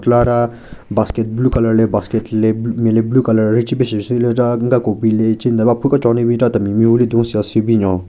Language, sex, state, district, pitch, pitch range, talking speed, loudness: Rengma, male, Nagaland, Kohima, 115 Hz, 110-120 Hz, 250 wpm, -15 LUFS